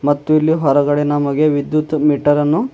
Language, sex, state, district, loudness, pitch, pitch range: Kannada, male, Karnataka, Bidar, -15 LUFS, 145 Hz, 145-155 Hz